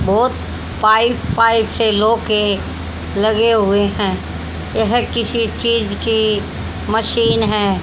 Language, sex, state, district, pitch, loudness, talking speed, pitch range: Hindi, female, Haryana, Charkhi Dadri, 215 Hz, -16 LUFS, 105 wpm, 200-230 Hz